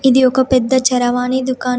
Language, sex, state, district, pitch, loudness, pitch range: Telugu, female, Telangana, Komaram Bheem, 255 Hz, -14 LUFS, 250-260 Hz